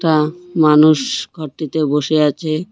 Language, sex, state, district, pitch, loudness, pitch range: Bengali, male, West Bengal, Cooch Behar, 155 Hz, -15 LUFS, 150-165 Hz